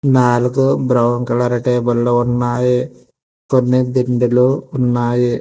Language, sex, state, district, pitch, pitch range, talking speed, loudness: Telugu, male, Telangana, Hyderabad, 125 Hz, 120-125 Hz, 100 wpm, -15 LUFS